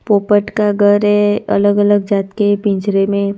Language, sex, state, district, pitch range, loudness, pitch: Hindi, female, Gujarat, Gandhinagar, 200-205 Hz, -14 LUFS, 205 Hz